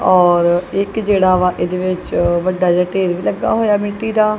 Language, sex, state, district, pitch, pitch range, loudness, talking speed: Punjabi, female, Punjab, Kapurthala, 185 Hz, 180-205 Hz, -15 LUFS, 180 wpm